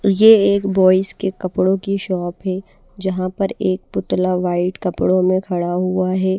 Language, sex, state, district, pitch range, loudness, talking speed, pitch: Hindi, female, Bihar, Patna, 185-195 Hz, -18 LUFS, 170 wpm, 185 Hz